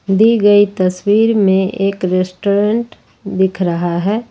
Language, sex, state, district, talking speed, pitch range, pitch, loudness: Hindi, female, Jharkhand, Ranchi, 125 wpm, 185-210 Hz, 195 Hz, -14 LUFS